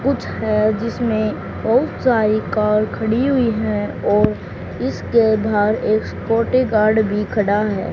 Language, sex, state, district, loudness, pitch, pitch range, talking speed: Hindi, male, Haryana, Charkhi Dadri, -18 LUFS, 215 Hz, 210-230 Hz, 130 wpm